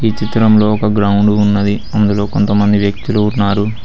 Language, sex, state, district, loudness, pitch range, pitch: Telugu, male, Telangana, Mahabubabad, -13 LUFS, 100-105 Hz, 105 Hz